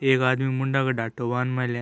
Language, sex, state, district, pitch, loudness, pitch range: Hindi, male, Rajasthan, Nagaur, 130 Hz, -24 LUFS, 120-135 Hz